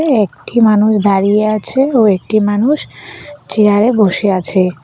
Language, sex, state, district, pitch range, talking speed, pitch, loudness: Bengali, female, West Bengal, Cooch Behar, 200-230 Hz, 135 wpm, 210 Hz, -12 LUFS